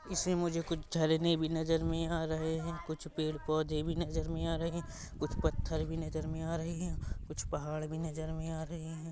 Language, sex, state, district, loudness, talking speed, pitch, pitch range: Hindi, female, Chhattisgarh, Rajnandgaon, -36 LUFS, 225 wpm, 160 Hz, 160-165 Hz